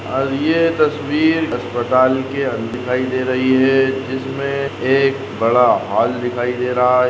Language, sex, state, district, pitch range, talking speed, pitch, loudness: Hindi, male, Maharashtra, Sindhudurg, 125-140 Hz, 135 wpm, 130 Hz, -17 LUFS